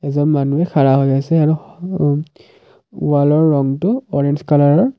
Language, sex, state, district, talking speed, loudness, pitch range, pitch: Assamese, male, Assam, Kamrup Metropolitan, 130 wpm, -15 LUFS, 145-185 Hz, 150 Hz